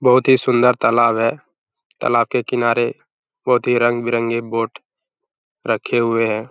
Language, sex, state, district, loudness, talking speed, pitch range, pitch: Hindi, male, Bihar, Araria, -17 LUFS, 140 wpm, 115-125 Hz, 120 Hz